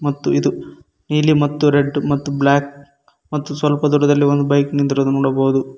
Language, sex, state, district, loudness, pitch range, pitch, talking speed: Kannada, male, Karnataka, Koppal, -17 LUFS, 135-145 Hz, 140 Hz, 145 wpm